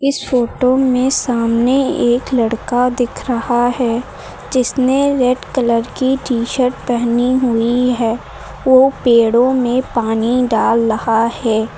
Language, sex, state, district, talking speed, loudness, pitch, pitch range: Hindi, female, Uttar Pradesh, Lucknow, 125 wpm, -15 LUFS, 245 Hz, 235-255 Hz